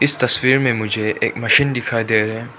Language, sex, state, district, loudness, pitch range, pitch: Hindi, male, Manipur, Imphal West, -16 LUFS, 110-130 Hz, 120 Hz